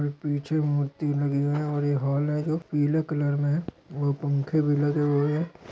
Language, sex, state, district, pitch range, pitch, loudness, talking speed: Hindi, male, Maharashtra, Dhule, 145-150 Hz, 145 Hz, -26 LUFS, 200 wpm